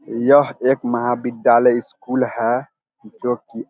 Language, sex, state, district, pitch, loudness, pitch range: Hindi, male, Bihar, Vaishali, 120 Hz, -18 LUFS, 120-130 Hz